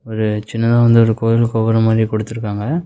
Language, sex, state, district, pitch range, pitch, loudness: Tamil, male, Tamil Nadu, Namakkal, 110-115 Hz, 115 Hz, -15 LUFS